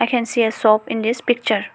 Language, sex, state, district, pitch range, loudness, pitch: English, female, Arunachal Pradesh, Lower Dibang Valley, 220-235 Hz, -18 LUFS, 230 Hz